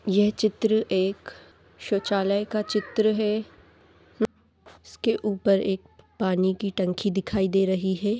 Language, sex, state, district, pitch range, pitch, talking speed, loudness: Hindi, female, Maharashtra, Nagpur, 190-215 Hz, 200 Hz, 125 wpm, -25 LUFS